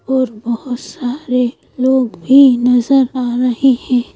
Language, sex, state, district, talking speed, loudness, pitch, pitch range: Hindi, female, Madhya Pradesh, Bhopal, 130 wpm, -14 LUFS, 250 Hz, 245-260 Hz